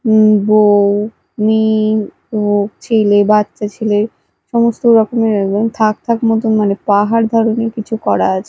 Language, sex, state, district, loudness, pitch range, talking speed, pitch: Bengali, female, Odisha, Malkangiri, -13 LUFS, 210-225 Hz, 135 wpm, 215 Hz